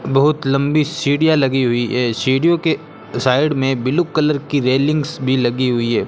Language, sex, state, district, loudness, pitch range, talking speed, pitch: Hindi, male, Rajasthan, Bikaner, -17 LUFS, 130-155 Hz, 175 wpm, 135 Hz